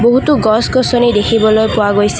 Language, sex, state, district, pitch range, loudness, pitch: Assamese, female, Assam, Kamrup Metropolitan, 215-245 Hz, -11 LUFS, 220 Hz